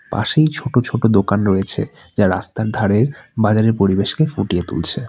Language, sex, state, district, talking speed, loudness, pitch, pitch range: Bengali, male, West Bengal, Alipurduar, 140 wpm, -17 LUFS, 110 Hz, 100-125 Hz